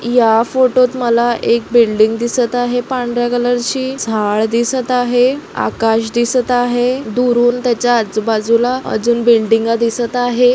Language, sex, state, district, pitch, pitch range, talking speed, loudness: Marathi, female, Maharashtra, Solapur, 240 Hz, 230-245 Hz, 130 wpm, -14 LUFS